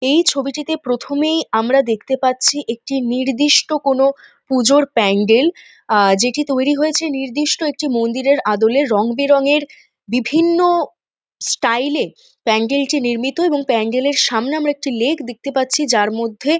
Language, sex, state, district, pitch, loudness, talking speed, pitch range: Bengali, female, West Bengal, North 24 Parganas, 275 Hz, -16 LUFS, 135 wpm, 240-295 Hz